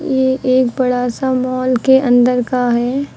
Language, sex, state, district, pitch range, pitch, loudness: Hindi, female, Uttar Pradesh, Lucknow, 245-260 Hz, 255 Hz, -14 LUFS